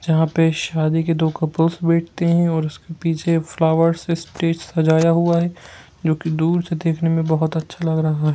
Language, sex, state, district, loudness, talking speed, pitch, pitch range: Hindi, male, Jharkhand, Jamtara, -19 LUFS, 200 wpm, 165 Hz, 160-165 Hz